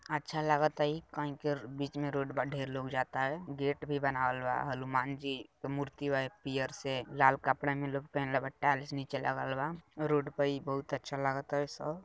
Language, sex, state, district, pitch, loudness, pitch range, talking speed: Bhojpuri, male, Bihar, Gopalganj, 140 Hz, -35 LUFS, 135-145 Hz, 175 wpm